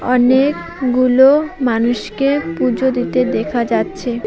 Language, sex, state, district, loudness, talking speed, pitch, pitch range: Bengali, female, West Bengal, Alipurduar, -15 LUFS, 85 wpm, 255 Hz, 245-275 Hz